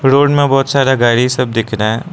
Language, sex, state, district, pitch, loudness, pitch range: Hindi, male, Arunachal Pradesh, Lower Dibang Valley, 130 Hz, -12 LUFS, 120-135 Hz